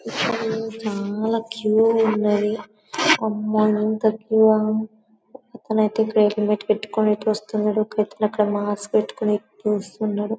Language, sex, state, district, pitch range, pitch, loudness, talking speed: Telugu, female, Telangana, Karimnagar, 210-220 Hz, 215 Hz, -21 LUFS, 110 wpm